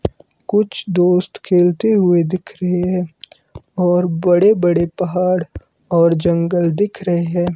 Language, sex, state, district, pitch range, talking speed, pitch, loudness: Hindi, male, Himachal Pradesh, Shimla, 170-185 Hz, 125 wpm, 180 Hz, -16 LUFS